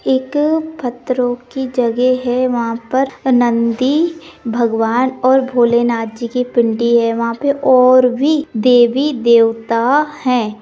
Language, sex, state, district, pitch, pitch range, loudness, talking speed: Hindi, female, Maharashtra, Sindhudurg, 250 Hz, 235-265 Hz, -14 LUFS, 125 wpm